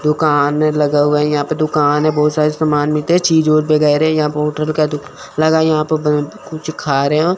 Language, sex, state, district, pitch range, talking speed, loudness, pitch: Hindi, male, Chandigarh, Chandigarh, 150-155 Hz, 180 wpm, -15 LUFS, 150 Hz